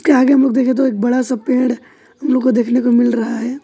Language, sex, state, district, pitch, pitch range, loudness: Hindi, male, West Bengal, Alipurduar, 255 Hz, 240-265 Hz, -15 LUFS